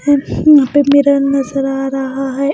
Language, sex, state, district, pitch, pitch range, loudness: Hindi, female, Bihar, Patna, 275 Hz, 270-285 Hz, -13 LUFS